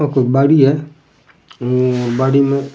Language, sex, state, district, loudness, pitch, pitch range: Rajasthani, male, Rajasthan, Churu, -14 LUFS, 140 Hz, 130-150 Hz